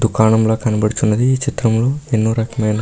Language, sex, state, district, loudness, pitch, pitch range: Telugu, male, Karnataka, Bellary, -16 LUFS, 110 Hz, 110-125 Hz